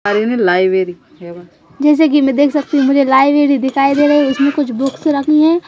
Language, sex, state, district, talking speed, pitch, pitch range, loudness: Hindi, female, Madhya Pradesh, Bhopal, 180 wpm, 275 Hz, 240-290 Hz, -13 LUFS